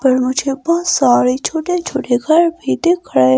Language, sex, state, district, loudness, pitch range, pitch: Hindi, female, Himachal Pradesh, Shimla, -15 LUFS, 245-340 Hz, 275 Hz